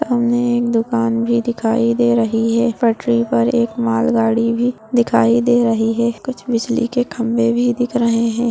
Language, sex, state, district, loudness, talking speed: Hindi, female, Maharashtra, Solapur, -16 LUFS, 175 wpm